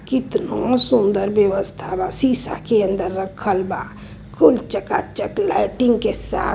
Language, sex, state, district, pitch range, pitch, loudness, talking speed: Hindi, female, Uttar Pradesh, Varanasi, 195-250 Hz, 205 Hz, -19 LUFS, 135 wpm